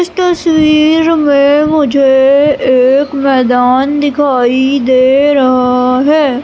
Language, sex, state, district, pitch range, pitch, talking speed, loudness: Hindi, female, Madhya Pradesh, Umaria, 260-300 Hz, 275 Hz, 95 wpm, -9 LUFS